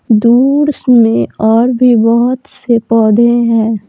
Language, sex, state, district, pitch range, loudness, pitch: Hindi, female, Bihar, Patna, 225-250 Hz, -10 LUFS, 235 Hz